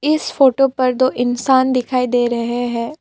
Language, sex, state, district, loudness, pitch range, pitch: Hindi, female, Assam, Kamrup Metropolitan, -16 LUFS, 245-270 Hz, 255 Hz